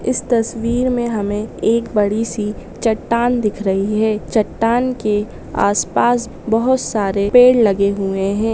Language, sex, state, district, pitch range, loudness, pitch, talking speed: Hindi, female, Andhra Pradesh, Chittoor, 205-235 Hz, -17 LUFS, 220 Hz, 145 wpm